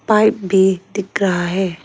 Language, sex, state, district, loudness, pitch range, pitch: Hindi, female, Arunachal Pradesh, Lower Dibang Valley, -17 LUFS, 185-200 Hz, 190 Hz